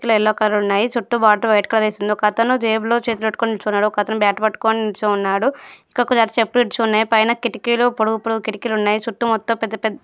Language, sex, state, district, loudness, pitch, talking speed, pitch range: Telugu, female, Andhra Pradesh, Guntur, -18 LUFS, 220 Hz, 190 wpm, 215-230 Hz